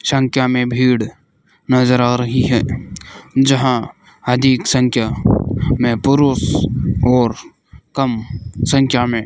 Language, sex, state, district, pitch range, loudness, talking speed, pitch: Hindi, male, Rajasthan, Bikaner, 120-135 Hz, -16 LUFS, 110 wpm, 125 Hz